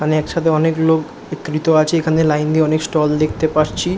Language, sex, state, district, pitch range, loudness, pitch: Bengali, male, West Bengal, Kolkata, 155-160 Hz, -16 LUFS, 155 Hz